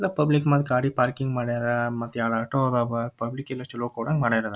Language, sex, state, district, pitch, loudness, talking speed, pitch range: Kannada, male, Karnataka, Dharwad, 120 Hz, -25 LUFS, 200 wpm, 115-135 Hz